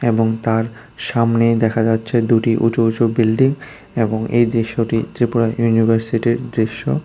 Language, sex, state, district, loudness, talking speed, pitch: Bengali, female, Tripura, West Tripura, -17 LUFS, 130 wpm, 115 Hz